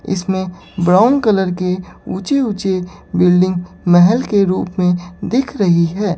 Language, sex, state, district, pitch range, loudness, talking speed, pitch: Hindi, female, Chandigarh, Chandigarh, 180-205 Hz, -15 LUFS, 135 wpm, 185 Hz